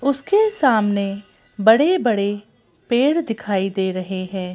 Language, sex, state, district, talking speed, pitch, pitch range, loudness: Hindi, female, Madhya Pradesh, Bhopal, 105 wpm, 210 Hz, 195-265 Hz, -19 LUFS